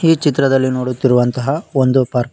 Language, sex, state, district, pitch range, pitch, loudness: Kannada, male, Karnataka, Koppal, 125-140 Hz, 130 Hz, -15 LUFS